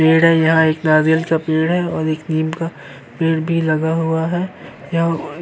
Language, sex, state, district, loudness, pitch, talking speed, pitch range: Hindi, male, Uttar Pradesh, Jyotiba Phule Nagar, -17 LUFS, 160 Hz, 210 wpm, 155-165 Hz